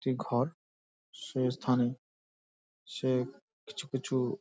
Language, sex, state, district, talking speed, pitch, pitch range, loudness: Bengali, male, West Bengal, Dakshin Dinajpur, 95 wpm, 130 Hz, 120-135 Hz, -33 LUFS